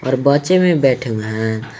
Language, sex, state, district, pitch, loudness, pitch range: Hindi, male, Jharkhand, Garhwa, 130 Hz, -16 LUFS, 110-145 Hz